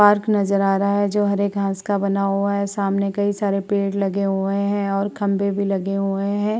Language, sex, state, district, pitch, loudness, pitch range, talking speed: Hindi, female, Uttar Pradesh, Muzaffarnagar, 200 Hz, -21 LUFS, 195-205 Hz, 225 wpm